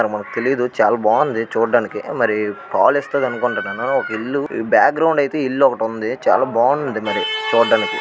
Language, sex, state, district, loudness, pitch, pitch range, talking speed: Telugu, male, Andhra Pradesh, Chittoor, -18 LUFS, 125 Hz, 115-145 Hz, 150 wpm